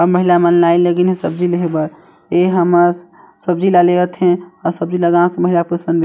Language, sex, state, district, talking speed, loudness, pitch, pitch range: Chhattisgarhi, male, Chhattisgarh, Sarguja, 220 wpm, -14 LUFS, 175 Hz, 170-180 Hz